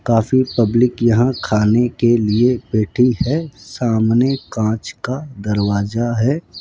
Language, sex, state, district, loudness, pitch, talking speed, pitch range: Hindi, male, Rajasthan, Jaipur, -17 LUFS, 120 Hz, 120 wpm, 110-125 Hz